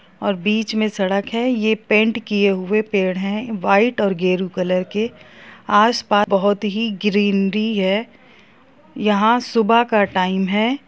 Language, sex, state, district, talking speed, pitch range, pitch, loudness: Hindi, female, Bihar, Gopalganj, 150 wpm, 195-225 Hz, 210 Hz, -18 LUFS